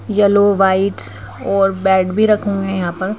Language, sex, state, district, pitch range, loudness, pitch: Hindi, female, Madhya Pradesh, Bhopal, 185-205 Hz, -15 LUFS, 195 Hz